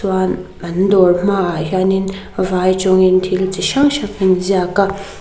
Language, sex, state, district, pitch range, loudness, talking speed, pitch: Mizo, female, Mizoram, Aizawl, 185-195 Hz, -15 LUFS, 185 wpm, 190 Hz